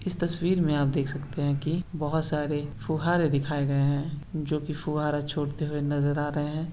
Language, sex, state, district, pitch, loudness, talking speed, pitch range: Hindi, male, Uttar Pradesh, Hamirpur, 150 Hz, -28 LUFS, 205 wpm, 145-160 Hz